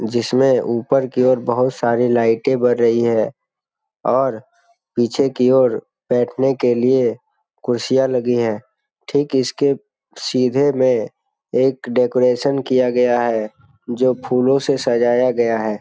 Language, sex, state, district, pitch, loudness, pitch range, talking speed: Hindi, male, Bihar, Jamui, 125 Hz, -17 LUFS, 120-130 Hz, 135 wpm